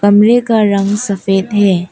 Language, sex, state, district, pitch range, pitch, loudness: Hindi, female, Arunachal Pradesh, Papum Pare, 195-210 Hz, 205 Hz, -12 LUFS